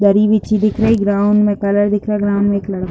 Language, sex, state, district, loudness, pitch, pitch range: Hindi, female, Uttar Pradesh, Deoria, -15 LUFS, 205 Hz, 200-210 Hz